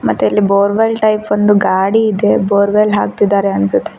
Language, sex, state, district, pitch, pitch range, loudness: Kannada, female, Karnataka, Koppal, 205 Hz, 200-215 Hz, -12 LUFS